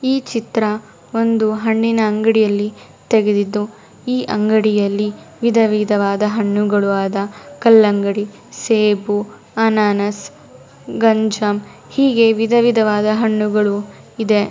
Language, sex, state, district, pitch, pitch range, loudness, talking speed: Kannada, female, Karnataka, Mysore, 215 Hz, 205-225 Hz, -16 LUFS, 90 wpm